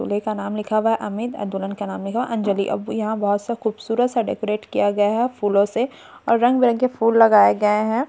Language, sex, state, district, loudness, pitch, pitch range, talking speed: Hindi, female, Bihar, Katihar, -20 LUFS, 215 Hz, 205-235 Hz, 245 wpm